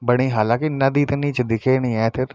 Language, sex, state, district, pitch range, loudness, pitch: Garhwali, male, Uttarakhand, Tehri Garhwal, 120-140 Hz, -20 LUFS, 130 Hz